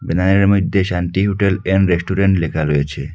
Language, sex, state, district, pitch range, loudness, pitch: Bengali, male, Assam, Hailakandi, 85-100 Hz, -16 LUFS, 95 Hz